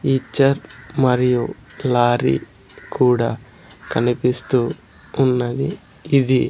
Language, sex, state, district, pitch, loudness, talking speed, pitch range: Telugu, male, Andhra Pradesh, Sri Satya Sai, 125 Hz, -19 LUFS, 65 wpm, 120-135 Hz